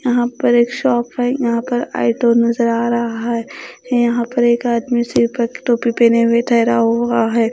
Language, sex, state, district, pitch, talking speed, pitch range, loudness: Hindi, female, Bihar, Katihar, 235 Hz, 185 wpm, 235-240 Hz, -16 LUFS